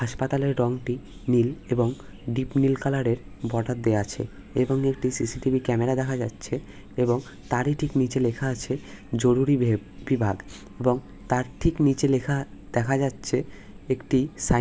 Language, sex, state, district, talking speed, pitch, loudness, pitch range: Bengali, male, West Bengal, North 24 Parganas, 155 wpm, 125 Hz, -26 LUFS, 115-135 Hz